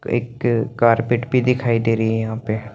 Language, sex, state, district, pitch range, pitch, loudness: Hindi, male, Chandigarh, Chandigarh, 110-120 Hz, 115 Hz, -19 LUFS